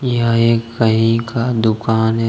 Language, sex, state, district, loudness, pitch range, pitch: Hindi, male, Jharkhand, Deoghar, -16 LUFS, 110-115 Hz, 115 Hz